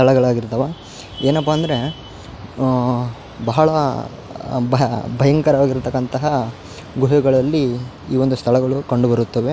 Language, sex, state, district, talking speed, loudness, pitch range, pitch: Kannada, male, Karnataka, Raichur, 80 wpm, -18 LUFS, 120-140 Hz, 130 Hz